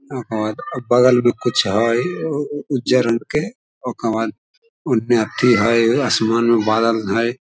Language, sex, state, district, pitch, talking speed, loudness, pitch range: Maithili, male, Bihar, Samastipur, 120 Hz, 145 wpm, -18 LUFS, 115-135 Hz